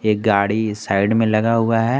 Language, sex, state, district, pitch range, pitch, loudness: Hindi, male, Jharkhand, Garhwa, 105-115 Hz, 110 Hz, -18 LUFS